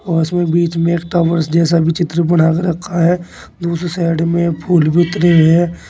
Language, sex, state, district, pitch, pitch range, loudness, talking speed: Hindi, male, Uttar Pradesh, Saharanpur, 170 Hz, 165-175 Hz, -14 LUFS, 195 wpm